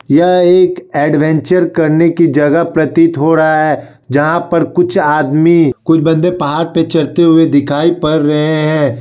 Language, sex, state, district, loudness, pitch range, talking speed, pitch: Hindi, male, Bihar, Kishanganj, -11 LUFS, 150-170 Hz, 160 wpm, 160 Hz